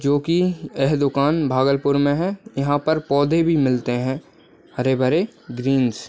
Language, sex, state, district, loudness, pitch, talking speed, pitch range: Hindi, male, Bihar, Bhagalpur, -20 LUFS, 140 Hz, 160 wpm, 135-160 Hz